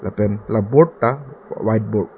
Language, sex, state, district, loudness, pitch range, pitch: Karbi, male, Assam, Karbi Anglong, -18 LUFS, 105-130 Hz, 110 Hz